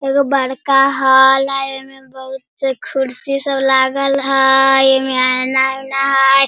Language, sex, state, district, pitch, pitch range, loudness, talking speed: Hindi, female, Bihar, Sitamarhi, 270 Hz, 265-275 Hz, -14 LUFS, 140 wpm